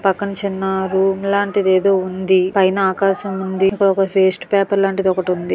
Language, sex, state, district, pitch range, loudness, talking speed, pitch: Telugu, female, Andhra Pradesh, Visakhapatnam, 190-195 Hz, -17 LUFS, 150 wpm, 195 Hz